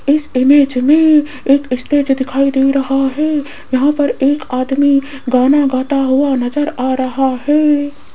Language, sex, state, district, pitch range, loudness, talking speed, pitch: Hindi, female, Rajasthan, Jaipur, 260-290 Hz, -13 LUFS, 145 wpm, 275 Hz